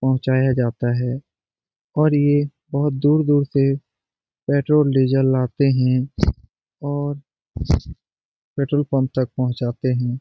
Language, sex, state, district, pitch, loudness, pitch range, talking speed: Hindi, male, Bihar, Jamui, 135 Hz, -20 LUFS, 130-145 Hz, 105 wpm